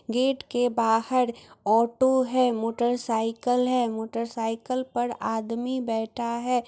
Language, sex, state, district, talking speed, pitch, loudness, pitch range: Maithili, female, Bihar, Muzaffarpur, 125 wpm, 240 Hz, -26 LUFS, 225-250 Hz